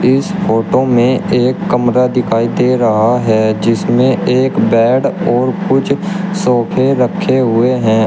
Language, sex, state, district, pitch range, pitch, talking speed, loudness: Hindi, male, Uttar Pradesh, Shamli, 115-130 Hz, 125 Hz, 135 wpm, -12 LUFS